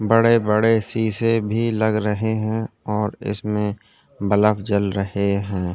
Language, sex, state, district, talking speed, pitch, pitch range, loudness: Hindi, male, Chhattisgarh, Sukma, 135 wpm, 105 Hz, 100-110 Hz, -21 LUFS